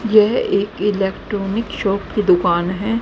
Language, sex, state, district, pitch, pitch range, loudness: Hindi, female, Haryana, Rohtak, 200 Hz, 195-215 Hz, -18 LUFS